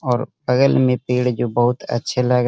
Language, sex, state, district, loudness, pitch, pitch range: Hindi, male, Bihar, Gaya, -19 LUFS, 125 Hz, 120-130 Hz